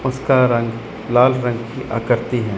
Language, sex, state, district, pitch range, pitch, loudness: Hindi, male, Chandigarh, Chandigarh, 115-130 Hz, 120 Hz, -18 LUFS